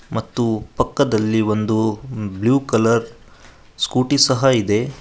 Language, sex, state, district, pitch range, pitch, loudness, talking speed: Kannada, male, Karnataka, Koppal, 110-130 Hz, 115 Hz, -18 LUFS, 95 wpm